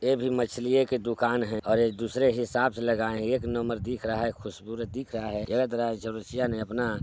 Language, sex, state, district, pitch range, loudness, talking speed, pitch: Hindi, male, Chhattisgarh, Sarguja, 110-125 Hz, -28 LUFS, 205 wpm, 115 Hz